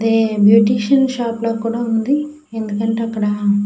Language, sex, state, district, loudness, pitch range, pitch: Telugu, female, Andhra Pradesh, Srikakulam, -16 LUFS, 220-235 Hz, 225 Hz